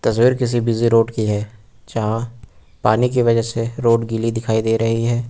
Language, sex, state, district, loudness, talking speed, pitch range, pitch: Hindi, male, Uttar Pradesh, Lucknow, -18 LUFS, 190 wpm, 110-115 Hz, 115 Hz